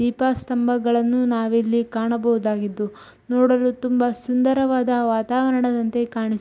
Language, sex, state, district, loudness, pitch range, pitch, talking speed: Kannada, female, Karnataka, Shimoga, -21 LUFS, 230-250 Hz, 240 Hz, 95 wpm